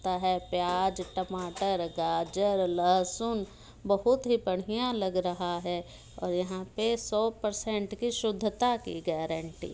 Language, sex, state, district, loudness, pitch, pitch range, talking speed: Hindi, female, Bihar, Muzaffarpur, -30 LUFS, 185 Hz, 180-215 Hz, 130 wpm